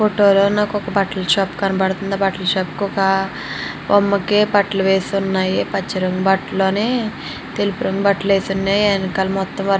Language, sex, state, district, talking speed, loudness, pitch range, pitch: Telugu, female, Andhra Pradesh, Srikakulam, 180 wpm, -18 LUFS, 190-200 Hz, 195 Hz